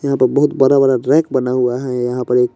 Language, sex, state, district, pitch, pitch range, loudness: Hindi, male, Bihar, West Champaran, 130 Hz, 125-140 Hz, -15 LUFS